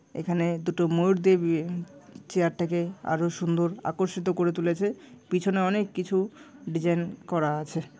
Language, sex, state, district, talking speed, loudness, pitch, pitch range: Bengali, female, West Bengal, Paschim Medinipur, 135 wpm, -27 LUFS, 175 Hz, 170-190 Hz